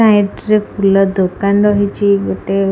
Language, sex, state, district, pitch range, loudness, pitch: Odia, female, Odisha, Khordha, 195-205 Hz, -14 LUFS, 200 Hz